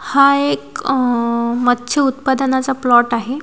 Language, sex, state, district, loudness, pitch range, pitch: Marathi, female, Maharashtra, Washim, -16 LUFS, 240-270 Hz, 255 Hz